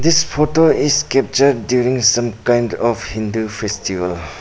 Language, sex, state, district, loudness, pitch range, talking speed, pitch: English, male, Arunachal Pradesh, Papum Pare, -16 LUFS, 110-135 Hz, 135 wpm, 120 Hz